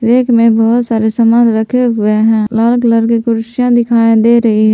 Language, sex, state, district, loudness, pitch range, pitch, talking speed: Hindi, female, Jharkhand, Palamu, -10 LUFS, 225-235 Hz, 230 Hz, 190 wpm